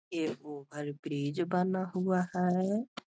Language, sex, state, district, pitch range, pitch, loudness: Hindi, female, Bihar, Gaya, 150-185 Hz, 180 Hz, -33 LUFS